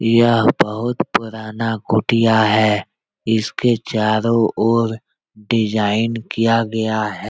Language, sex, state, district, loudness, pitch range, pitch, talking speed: Hindi, male, Bihar, Jahanabad, -17 LUFS, 110-115 Hz, 110 Hz, 100 wpm